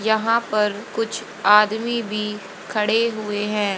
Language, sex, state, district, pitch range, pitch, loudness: Hindi, female, Haryana, Jhajjar, 210-225 Hz, 210 Hz, -21 LUFS